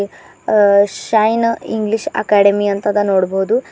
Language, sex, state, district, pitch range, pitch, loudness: Kannada, female, Karnataka, Bidar, 200-220 Hz, 205 Hz, -15 LUFS